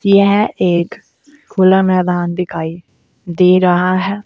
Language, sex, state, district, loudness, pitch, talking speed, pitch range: Hindi, female, Uttar Pradesh, Saharanpur, -13 LUFS, 185 Hz, 115 wpm, 175-195 Hz